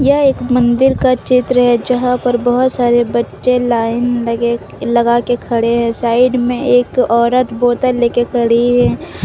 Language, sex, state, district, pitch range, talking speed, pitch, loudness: Hindi, female, Jharkhand, Deoghar, 235-250 Hz, 170 wpm, 245 Hz, -13 LUFS